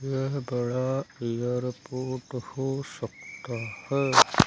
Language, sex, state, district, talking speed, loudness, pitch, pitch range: Hindi, male, Madhya Pradesh, Umaria, 80 wpm, -29 LUFS, 130 Hz, 125-135 Hz